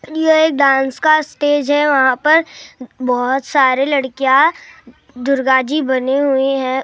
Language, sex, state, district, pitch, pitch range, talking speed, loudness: Hindi, male, Maharashtra, Gondia, 275 Hz, 260-295 Hz, 125 wpm, -14 LUFS